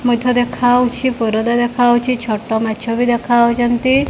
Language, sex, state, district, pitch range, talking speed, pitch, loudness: Odia, female, Odisha, Khordha, 235-245 Hz, 145 wpm, 240 Hz, -15 LUFS